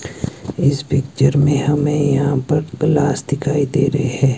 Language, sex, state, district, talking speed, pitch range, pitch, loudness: Hindi, male, Himachal Pradesh, Shimla, 150 wpm, 140-145 Hz, 145 Hz, -17 LUFS